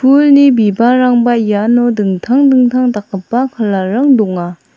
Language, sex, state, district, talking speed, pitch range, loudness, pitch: Garo, female, Meghalaya, South Garo Hills, 115 wpm, 205-255 Hz, -11 LUFS, 240 Hz